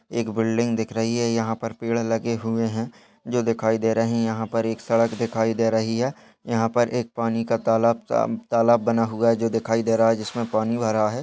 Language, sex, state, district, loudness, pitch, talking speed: Hindi, male, Uttarakhand, Tehri Garhwal, -23 LUFS, 115 Hz, 225 wpm